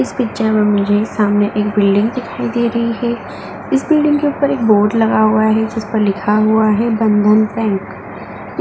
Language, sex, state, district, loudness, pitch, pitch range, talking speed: Hindi, female, Uttar Pradesh, Muzaffarnagar, -14 LUFS, 220 Hz, 210-235 Hz, 190 wpm